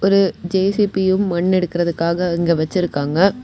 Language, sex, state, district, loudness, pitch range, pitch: Tamil, female, Tamil Nadu, Kanyakumari, -18 LUFS, 170-195 Hz, 180 Hz